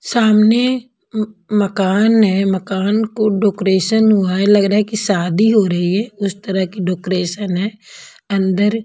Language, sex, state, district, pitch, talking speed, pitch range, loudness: Hindi, female, Punjab, Pathankot, 205 Hz, 155 wpm, 190-215 Hz, -16 LUFS